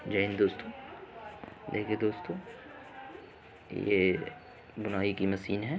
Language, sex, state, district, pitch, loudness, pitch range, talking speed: Hindi, male, Uttar Pradesh, Muzaffarnagar, 100 Hz, -32 LUFS, 100-105 Hz, 105 wpm